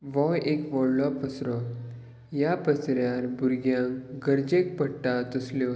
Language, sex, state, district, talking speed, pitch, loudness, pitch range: Konkani, male, Goa, North and South Goa, 115 wpm, 130 Hz, -27 LUFS, 125-145 Hz